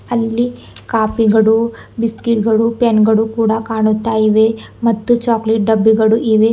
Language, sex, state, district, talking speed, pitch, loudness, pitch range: Kannada, female, Karnataka, Bidar, 100 wpm, 225 Hz, -14 LUFS, 220-230 Hz